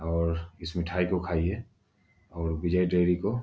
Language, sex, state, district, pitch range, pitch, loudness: Hindi, male, Bihar, Gaya, 85-95 Hz, 90 Hz, -29 LUFS